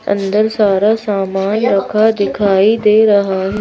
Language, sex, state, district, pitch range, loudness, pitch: Hindi, female, Madhya Pradesh, Bhopal, 195-215 Hz, -13 LUFS, 205 Hz